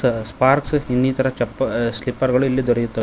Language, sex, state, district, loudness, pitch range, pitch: Kannada, male, Karnataka, Koppal, -19 LUFS, 120-130 Hz, 125 Hz